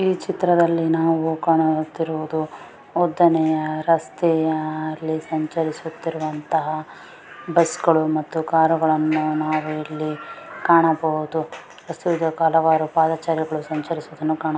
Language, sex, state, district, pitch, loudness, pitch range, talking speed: Kannada, female, Karnataka, Mysore, 160 Hz, -21 LUFS, 155-165 Hz, 70 wpm